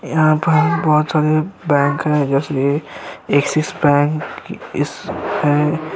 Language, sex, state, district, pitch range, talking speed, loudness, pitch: Hindi, male, Uttar Pradesh, Jyotiba Phule Nagar, 145-155 Hz, 110 wpm, -17 LUFS, 150 Hz